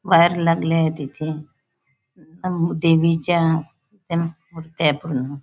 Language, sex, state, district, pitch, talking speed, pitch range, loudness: Marathi, female, Maharashtra, Nagpur, 165 Hz, 110 wpm, 150-170 Hz, -20 LUFS